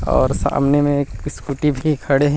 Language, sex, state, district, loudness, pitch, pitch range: Chhattisgarhi, male, Chhattisgarh, Rajnandgaon, -18 LUFS, 140 Hz, 135-145 Hz